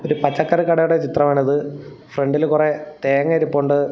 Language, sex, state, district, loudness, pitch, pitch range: Malayalam, male, Kerala, Thiruvananthapuram, -18 LUFS, 150 Hz, 145-155 Hz